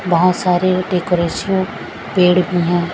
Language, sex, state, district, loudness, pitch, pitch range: Hindi, female, Punjab, Kapurthala, -16 LUFS, 180 Hz, 175-185 Hz